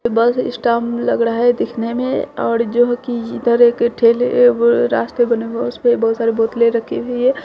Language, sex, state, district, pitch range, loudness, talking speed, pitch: Hindi, female, Bihar, Saharsa, 230-245 Hz, -16 LUFS, 185 wpm, 235 Hz